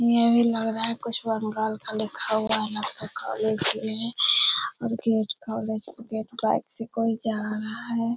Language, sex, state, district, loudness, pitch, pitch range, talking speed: Hindi, male, Bihar, Jamui, -25 LUFS, 225 Hz, 220-235 Hz, 190 wpm